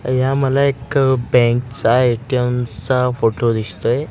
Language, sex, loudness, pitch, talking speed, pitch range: Marathi, male, -17 LUFS, 125 Hz, 130 wpm, 120-130 Hz